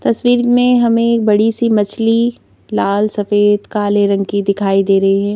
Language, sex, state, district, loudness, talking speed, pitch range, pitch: Hindi, female, Madhya Pradesh, Bhopal, -14 LUFS, 170 wpm, 200-230 Hz, 210 Hz